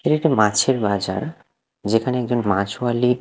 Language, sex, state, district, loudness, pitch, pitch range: Bengali, male, Odisha, Khordha, -20 LUFS, 120 Hz, 105-130 Hz